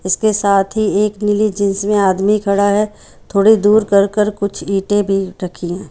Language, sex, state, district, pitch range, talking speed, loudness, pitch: Hindi, female, Haryana, Charkhi Dadri, 195-210 Hz, 185 wpm, -15 LUFS, 200 Hz